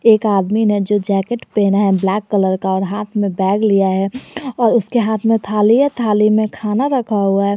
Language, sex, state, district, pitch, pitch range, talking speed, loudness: Hindi, male, Jharkhand, Garhwa, 210 Hz, 195-225 Hz, 220 wpm, -16 LUFS